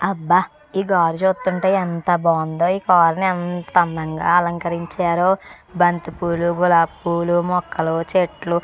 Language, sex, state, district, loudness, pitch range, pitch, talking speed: Telugu, female, Andhra Pradesh, Chittoor, -19 LUFS, 170-185 Hz, 175 Hz, 110 wpm